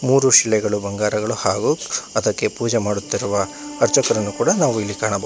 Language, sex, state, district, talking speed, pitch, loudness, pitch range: Kannada, male, Karnataka, Bangalore, 135 wpm, 110 Hz, -19 LUFS, 105-130 Hz